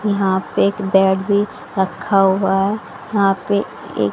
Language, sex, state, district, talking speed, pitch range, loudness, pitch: Hindi, female, Haryana, Rohtak, 160 wpm, 190-200 Hz, -18 LUFS, 195 Hz